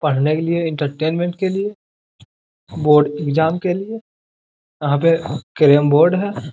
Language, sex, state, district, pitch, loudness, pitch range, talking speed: Hindi, male, Bihar, Jamui, 160 Hz, -17 LUFS, 150-180 Hz, 140 wpm